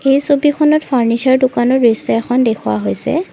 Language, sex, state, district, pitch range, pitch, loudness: Assamese, female, Assam, Sonitpur, 230-285 Hz, 255 Hz, -13 LUFS